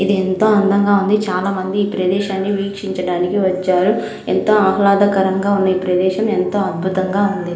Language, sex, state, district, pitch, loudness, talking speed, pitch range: Telugu, female, Andhra Pradesh, Krishna, 195 Hz, -16 LUFS, 145 wpm, 185-200 Hz